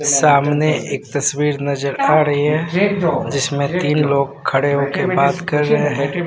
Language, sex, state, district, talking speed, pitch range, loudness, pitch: Hindi, male, Bihar, Katihar, 155 wpm, 140-155 Hz, -17 LUFS, 145 Hz